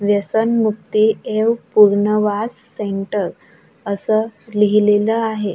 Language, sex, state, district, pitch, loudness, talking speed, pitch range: Marathi, female, Maharashtra, Gondia, 215 Hz, -17 LUFS, 75 wpm, 205-220 Hz